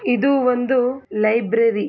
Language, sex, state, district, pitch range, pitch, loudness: Kannada, female, Karnataka, Mysore, 230-255 Hz, 245 Hz, -18 LUFS